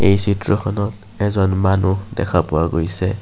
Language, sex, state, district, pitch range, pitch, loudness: Assamese, male, Assam, Kamrup Metropolitan, 95-100 Hz, 100 Hz, -18 LUFS